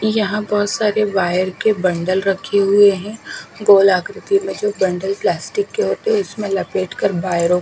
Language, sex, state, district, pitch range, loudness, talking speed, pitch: Hindi, female, Haryana, Charkhi Dadri, 185-215 Hz, -17 LUFS, 180 wpm, 200 Hz